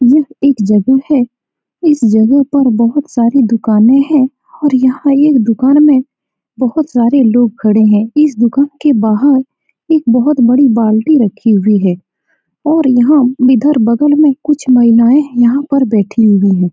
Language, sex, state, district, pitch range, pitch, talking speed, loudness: Hindi, female, Bihar, Saran, 230-285 Hz, 255 Hz, 155 wpm, -10 LUFS